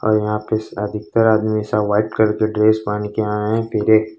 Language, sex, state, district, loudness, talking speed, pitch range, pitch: Hindi, male, Jharkhand, Ranchi, -18 LUFS, 215 wpm, 105-110 Hz, 110 Hz